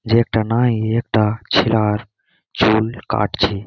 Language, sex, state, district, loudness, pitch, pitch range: Bengali, male, West Bengal, Malda, -18 LUFS, 110 Hz, 105-115 Hz